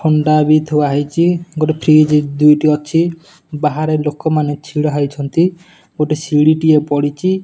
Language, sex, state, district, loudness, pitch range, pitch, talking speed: Odia, male, Odisha, Nuapada, -14 LUFS, 150-160 Hz, 155 Hz, 130 wpm